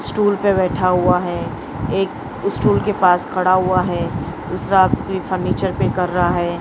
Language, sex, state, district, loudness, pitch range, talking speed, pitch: Hindi, female, Maharashtra, Mumbai Suburban, -18 LUFS, 175-185 Hz, 170 wpm, 180 Hz